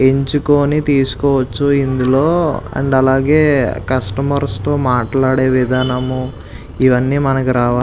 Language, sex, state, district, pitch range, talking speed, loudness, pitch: Telugu, male, Andhra Pradesh, Visakhapatnam, 130-140 Hz, 90 wpm, -14 LUFS, 130 Hz